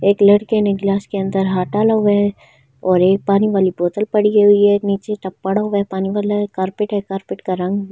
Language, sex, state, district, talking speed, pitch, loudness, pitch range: Hindi, female, Delhi, New Delhi, 240 wpm, 200 Hz, -17 LUFS, 190-205 Hz